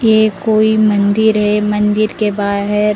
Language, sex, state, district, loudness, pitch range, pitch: Hindi, female, Delhi, New Delhi, -13 LUFS, 210-215 Hz, 210 Hz